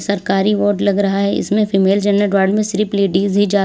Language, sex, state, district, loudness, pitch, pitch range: Hindi, female, Uttar Pradesh, Lalitpur, -15 LUFS, 200 Hz, 195-205 Hz